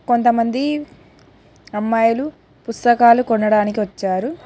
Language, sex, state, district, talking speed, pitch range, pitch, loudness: Telugu, female, Telangana, Hyderabad, 65 wpm, 215-245 Hz, 230 Hz, -17 LUFS